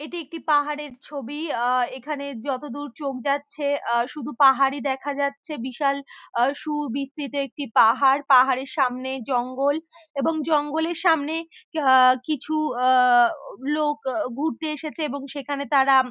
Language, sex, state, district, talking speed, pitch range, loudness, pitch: Bengali, female, West Bengal, Purulia, 135 wpm, 265-300 Hz, -23 LUFS, 280 Hz